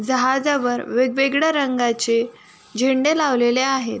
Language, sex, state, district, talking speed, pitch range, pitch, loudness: Marathi, female, Maharashtra, Sindhudurg, 90 wpm, 240-275 Hz, 260 Hz, -19 LUFS